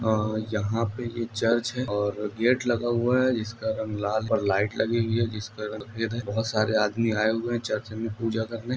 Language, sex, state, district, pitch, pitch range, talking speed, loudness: Hindi, male, Bihar, Samastipur, 110 Hz, 110-115 Hz, 230 wpm, -27 LUFS